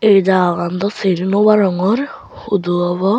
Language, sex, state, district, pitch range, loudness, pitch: Chakma, male, Tripura, Unakoti, 180-205 Hz, -15 LUFS, 195 Hz